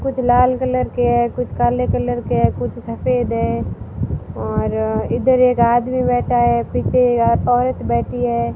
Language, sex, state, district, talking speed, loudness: Hindi, female, Rajasthan, Barmer, 175 wpm, -17 LUFS